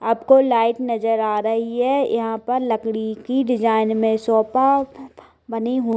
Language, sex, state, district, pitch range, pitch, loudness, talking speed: Hindi, female, Bihar, Darbhanga, 225-255 Hz, 230 Hz, -19 LUFS, 160 wpm